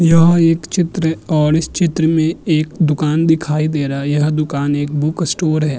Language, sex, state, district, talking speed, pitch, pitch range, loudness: Hindi, male, Maharashtra, Chandrapur, 195 wpm, 155 Hz, 150-165 Hz, -15 LUFS